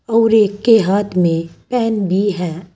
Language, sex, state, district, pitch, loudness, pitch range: Hindi, female, Uttar Pradesh, Saharanpur, 200 Hz, -15 LUFS, 180-225 Hz